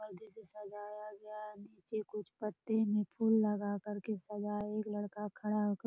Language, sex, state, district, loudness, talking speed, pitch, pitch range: Hindi, female, Bihar, Purnia, -38 LUFS, 195 wpm, 210 Hz, 205-215 Hz